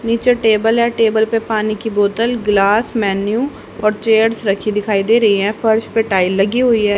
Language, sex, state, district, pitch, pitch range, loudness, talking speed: Hindi, female, Haryana, Rohtak, 220 Hz, 205-230 Hz, -15 LUFS, 200 wpm